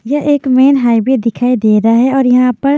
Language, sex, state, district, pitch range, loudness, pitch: Hindi, female, Punjab, Fazilka, 230-270 Hz, -11 LUFS, 250 Hz